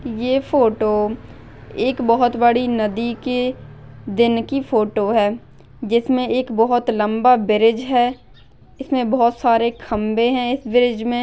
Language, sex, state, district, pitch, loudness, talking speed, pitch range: Hindi, female, Maharashtra, Nagpur, 235 Hz, -18 LUFS, 135 wpm, 225-250 Hz